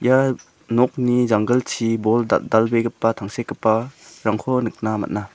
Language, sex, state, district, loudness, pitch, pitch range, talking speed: Garo, male, Meghalaya, South Garo Hills, -20 LUFS, 115 Hz, 110-125 Hz, 90 wpm